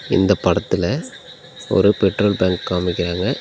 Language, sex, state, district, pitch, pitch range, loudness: Tamil, male, Tamil Nadu, Nilgiris, 95 Hz, 90-100 Hz, -18 LUFS